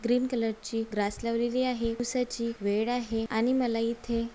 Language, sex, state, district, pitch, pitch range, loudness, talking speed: Marathi, female, Maharashtra, Aurangabad, 230 Hz, 225-245 Hz, -30 LUFS, 150 wpm